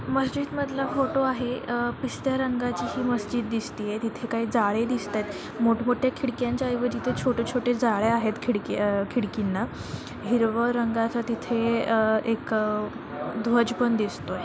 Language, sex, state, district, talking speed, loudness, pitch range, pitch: Marathi, female, Maharashtra, Chandrapur, 150 wpm, -26 LUFS, 225-250 Hz, 235 Hz